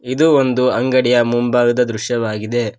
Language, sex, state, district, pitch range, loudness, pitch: Kannada, male, Karnataka, Koppal, 120-125 Hz, -15 LUFS, 120 Hz